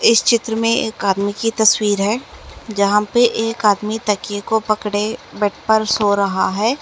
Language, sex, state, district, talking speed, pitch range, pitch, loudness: Hindi, female, Bihar, Jahanabad, 175 wpm, 205-225 Hz, 215 Hz, -17 LUFS